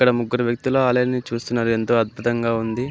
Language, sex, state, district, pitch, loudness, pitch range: Telugu, male, Andhra Pradesh, Anantapur, 120 Hz, -21 LUFS, 115-125 Hz